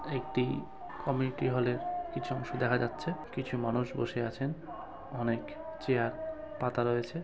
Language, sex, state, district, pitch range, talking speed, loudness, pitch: Bengali, male, West Bengal, Kolkata, 120-165 Hz, 135 wpm, -34 LUFS, 130 Hz